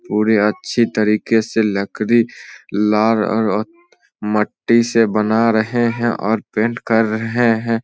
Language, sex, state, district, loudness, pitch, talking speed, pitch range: Hindi, male, Bihar, Samastipur, -17 LUFS, 110 Hz, 140 wpm, 105-115 Hz